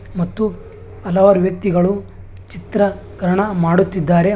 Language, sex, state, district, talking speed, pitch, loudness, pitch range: Kannada, male, Karnataka, Bangalore, 110 wpm, 185 Hz, -17 LUFS, 175-200 Hz